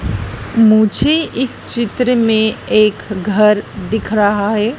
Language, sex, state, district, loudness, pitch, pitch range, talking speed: Hindi, female, Madhya Pradesh, Dhar, -14 LUFS, 215 Hz, 205-230 Hz, 115 wpm